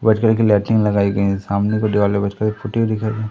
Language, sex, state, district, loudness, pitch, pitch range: Hindi, male, Madhya Pradesh, Umaria, -18 LUFS, 105 Hz, 100-110 Hz